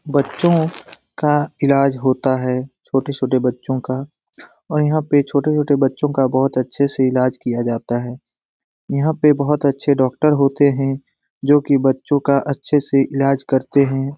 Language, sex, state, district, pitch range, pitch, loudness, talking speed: Hindi, male, Bihar, Lakhisarai, 130-145 Hz, 140 Hz, -18 LUFS, 165 wpm